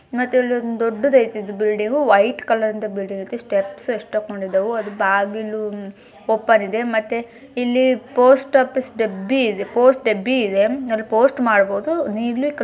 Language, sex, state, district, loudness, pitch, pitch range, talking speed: Kannada, male, Karnataka, Bijapur, -19 LUFS, 225 Hz, 210-255 Hz, 110 wpm